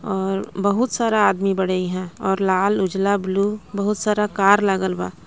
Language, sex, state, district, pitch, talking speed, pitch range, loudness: Bhojpuri, female, Jharkhand, Palamu, 195 Hz, 170 wpm, 190-205 Hz, -20 LUFS